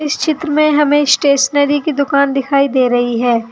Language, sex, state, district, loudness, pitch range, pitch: Hindi, female, Uttar Pradesh, Saharanpur, -13 LUFS, 270-295 Hz, 280 Hz